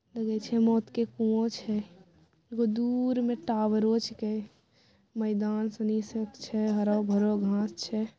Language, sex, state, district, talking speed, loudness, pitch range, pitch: Maithili, female, Bihar, Bhagalpur, 145 wpm, -29 LUFS, 210-230 Hz, 220 Hz